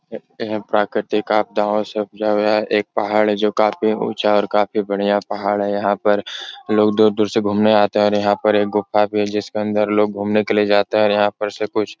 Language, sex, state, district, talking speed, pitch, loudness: Hindi, male, Uttar Pradesh, Etah, 210 wpm, 105 Hz, -18 LUFS